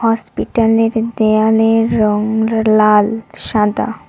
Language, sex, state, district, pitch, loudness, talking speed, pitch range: Bengali, female, West Bengal, Cooch Behar, 220 Hz, -14 LUFS, 90 wpm, 215-225 Hz